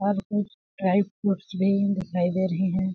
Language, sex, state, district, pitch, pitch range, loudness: Hindi, female, Chhattisgarh, Balrampur, 190 Hz, 185-200 Hz, -25 LUFS